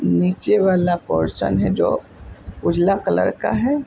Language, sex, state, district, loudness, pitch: Hindi, male, Uttar Pradesh, Budaun, -19 LUFS, 170 Hz